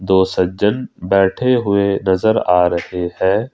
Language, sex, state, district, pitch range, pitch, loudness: Hindi, male, Jharkhand, Ranchi, 90-105 Hz, 95 Hz, -16 LUFS